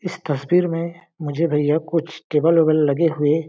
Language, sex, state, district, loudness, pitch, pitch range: Hindi, male, Chhattisgarh, Balrampur, -19 LUFS, 160 Hz, 150-170 Hz